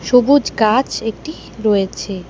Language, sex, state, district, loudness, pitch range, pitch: Bengali, female, West Bengal, Alipurduar, -16 LUFS, 195-265 Hz, 225 Hz